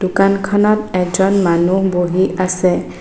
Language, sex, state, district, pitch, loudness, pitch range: Assamese, female, Assam, Sonitpur, 190 Hz, -15 LUFS, 180-195 Hz